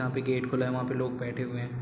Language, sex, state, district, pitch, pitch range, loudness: Hindi, male, Uttar Pradesh, Muzaffarnagar, 125 Hz, 125-130 Hz, -31 LUFS